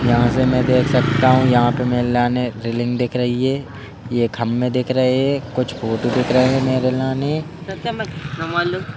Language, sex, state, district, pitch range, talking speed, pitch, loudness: Hindi, male, Madhya Pradesh, Bhopal, 120-135 Hz, 145 wpm, 130 Hz, -18 LUFS